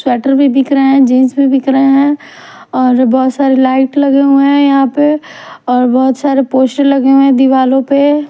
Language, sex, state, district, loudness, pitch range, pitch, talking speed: Hindi, female, Punjab, Kapurthala, -10 LUFS, 260-280 Hz, 270 Hz, 200 wpm